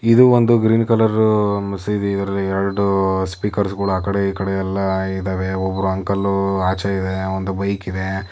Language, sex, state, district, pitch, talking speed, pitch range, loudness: Kannada, female, Karnataka, Chamarajanagar, 100 Hz, 135 wpm, 95-100 Hz, -19 LUFS